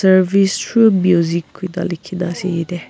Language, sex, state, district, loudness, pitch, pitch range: Nagamese, female, Nagaland, Kohima, -16 LUFS, 185 Hz, 175-190 Hz